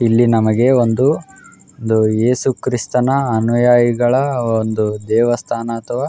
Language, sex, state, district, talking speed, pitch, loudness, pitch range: Kannada, male, Karnataka, Raichur, 100 wpm, 120 Hz, -15 LUFS, 110-125 Hz